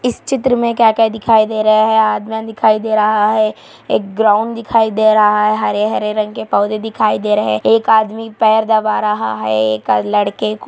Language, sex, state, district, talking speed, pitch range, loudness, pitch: Hindi, female, Andhra Pradesh, Anantapur, 200 wpm, 210-220 Hz, -14 LUFS, 215 Hz